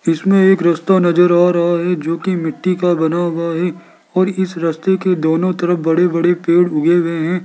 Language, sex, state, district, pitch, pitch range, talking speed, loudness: Hindi, male, Rajasthan, Jaipur, 175 Hz, 165-180 Hz, 210 wpm, -15 LUFS